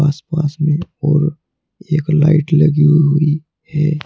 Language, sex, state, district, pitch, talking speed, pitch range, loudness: Hindi, male, Uttar Pradesh, Saharanpur, 155 Hz, 120 wpm, 150-155 Hz, -15 LUFS